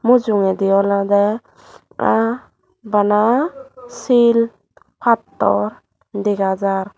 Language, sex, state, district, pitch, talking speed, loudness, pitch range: Chakma, female, Tripura, Dhalai, 210 Hz, 70 wpm, -17 LUFS, 200-240 Hz